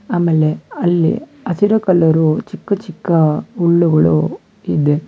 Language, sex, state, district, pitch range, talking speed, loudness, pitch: Kannada, male, Karnataka, Bangalore, 160-200 Hz, 95 wpm, -15 LUFS, 170 Hz